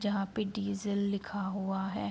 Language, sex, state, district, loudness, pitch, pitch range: Hindi, female, Uttar Pradesh, Jalaun, -34 LUFS, 200 Hz, 195-205 Hz